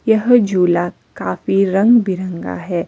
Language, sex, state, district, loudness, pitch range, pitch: Hindi, female, Himachal Pradesh, Shimla, -16 LUFS, 175-220 Hz, 190 Hz